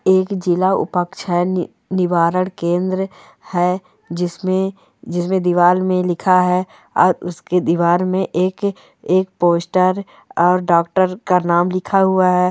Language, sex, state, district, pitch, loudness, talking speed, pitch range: Hindi, female, Rajasthan, Churu, 180 Hz, -17 LUFS, 125 wpm, 175-190 Hz